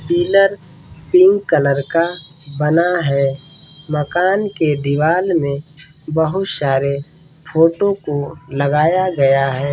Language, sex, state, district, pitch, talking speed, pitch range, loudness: Hindi, male, Bihar, Saran, 155 Hz, 105 wpm, 140-175 Hz, -16 LUFS